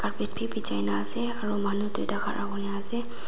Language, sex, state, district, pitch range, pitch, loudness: Nagamese, female, Nagaland, Dimapur, 200-215 Hz, 205 Hz, -24 LUFS